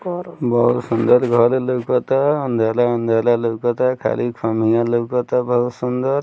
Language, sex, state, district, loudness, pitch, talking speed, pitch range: Bhojpuri, male, Bihar, Muzaffarpur, -18 LUFS, 120 Hz, 125 wpm, 120-125 Hz